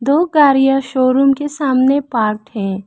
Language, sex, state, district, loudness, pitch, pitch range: Hindi, female, Arunachal Pradesh, Lower Dibang Valley, -14 LUFS, 270 Hz, 245-280 Hz